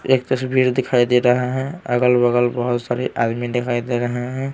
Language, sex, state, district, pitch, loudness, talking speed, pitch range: Hindi, male, Bihar, Patna, 125 Hz, -19 LUFS, 185 wpm, 120-130 Hz